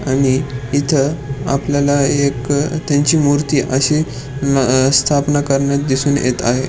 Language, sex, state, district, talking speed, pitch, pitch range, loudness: Marathi, male, Maharashtra, Pune, 125 wpm, 140 Hz, 135-145 Hz, -15 LUFS